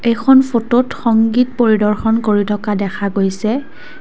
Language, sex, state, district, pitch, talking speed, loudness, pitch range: Assamese, female, Assam, Kamrup Metropolitan, 225 Hz, 120 wpm, -15 LUFS, 210-245 Hz